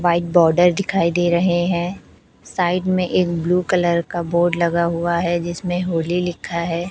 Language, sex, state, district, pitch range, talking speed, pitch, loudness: Hindi, female, Chhattisgarh, Raipur, 170-180 Hz, 175 wpm, 175 Hz, -19 LUFS